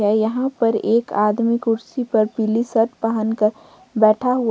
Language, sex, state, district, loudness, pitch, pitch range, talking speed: Hindi, female, Jharkhand, Ranchi, -19 LUFS, 225 Hz, 220-235 Hz, 145 wpm